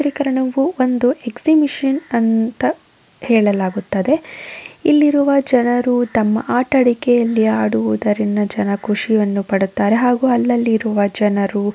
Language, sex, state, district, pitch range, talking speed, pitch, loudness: Kannada, female, Karnataka, Raichur, 205-260 Hz, 85 wpm, 235 Hz, -16 LUFS